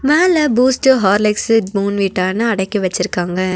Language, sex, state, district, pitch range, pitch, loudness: Tamil, female, Tamil Nadu, Nilgiris, 190-255 Hz, 205 Hz, -15 LUFS